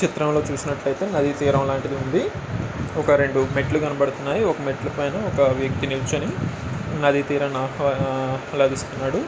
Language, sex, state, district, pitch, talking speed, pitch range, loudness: Telugu, male, Andhra Pradesh, Anantapur, 140 Hz, 135 wpm, 135-145 Hz, -22 LUFS